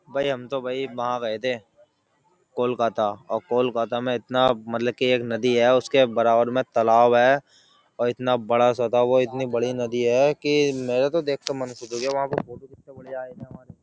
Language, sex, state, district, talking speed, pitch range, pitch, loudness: Hindi, male, Uttar Pradesh, Jyotiba Phule Nagar, 210 wpm, 120-130 Hz, 125 Hz, -22 LUFS